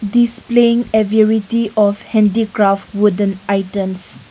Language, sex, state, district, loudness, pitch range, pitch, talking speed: English, female, Nagaland, Kohima, -15 LUFS, 200-225 Hz, 210 Hz, 85 wpm